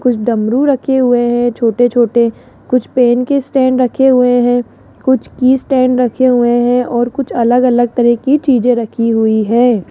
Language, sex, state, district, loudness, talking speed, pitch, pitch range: Hindi, female, Rajasthan, Jaipur, -12 LUFS, 180 wpm, 245 Hz, 240-255 Hz